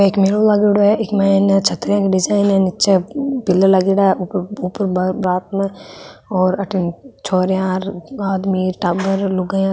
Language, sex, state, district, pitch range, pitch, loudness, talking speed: Marwari, female, Rajasthan, Nagaur, 185-200 Hz, 195 Hz, -16 LUFS, 150 wpm